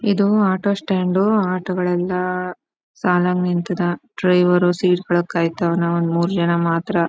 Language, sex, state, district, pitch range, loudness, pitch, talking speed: Kannada, female, Karnataka, Chamarajanagar, 175-185 Hz, -19 LUFS, 180 Hz, 125 wpm